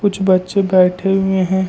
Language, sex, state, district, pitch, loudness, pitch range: Hindi, male, Jharkhand, Ranchi, 190 Hz, -15 LUFS, 185-195 Hz